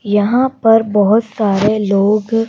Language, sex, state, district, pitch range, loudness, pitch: Hindi, female, Madhya Pradesh, Bhopal, 205-225 Hz, -13 LUFS, 215 Hz